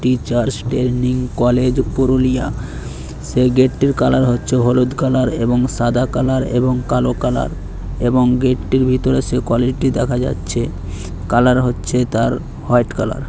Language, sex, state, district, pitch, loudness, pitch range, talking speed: Bengali, male, West Bengal, Purulia, 125 Hz, -16 LUFS, 120-130 Hz, 130 wpm